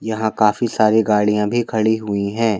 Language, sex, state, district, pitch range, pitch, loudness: Hindi, male, Madhya Pradesh, Bhopal, 105-110 Hz, 110 Hz, -17 LUFS